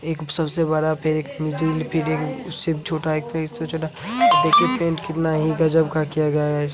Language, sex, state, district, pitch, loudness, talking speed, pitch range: Hindi, male, Uttar Pradesh, Jalaun, 160 Hz, -21 LUFS, 220 wpm, 155-165 Hz